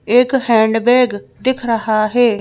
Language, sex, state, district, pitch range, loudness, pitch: Hindi, female, Madhya Pradesh, Bhopal, 220-250 Hz, -15 LUFS, 235 Hz